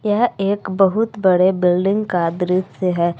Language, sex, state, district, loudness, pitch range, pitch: Hindi, female, Jharkhand, Palamu, -18 LUFS, 180-205 Hz, 190 Hz